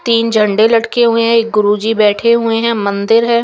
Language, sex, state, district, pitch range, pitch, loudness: Hindi, female, Chandigarh, Chandigarh, 210-230 Hz, 230 Hz, -12 LUFS